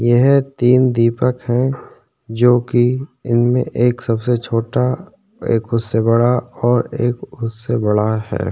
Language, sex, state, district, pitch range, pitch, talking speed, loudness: Hindi, male, Uttarakhand, Tehri Garhwal, 115-125 Hz, 120 Hz, 135 wpm, -17 LUFS